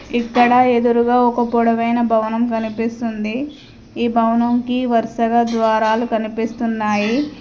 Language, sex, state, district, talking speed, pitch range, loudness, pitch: Telugu, female, Telangana, Mahabubabad, 90 wpm, 225-240 Hz, -17 LUFS, 235 Hz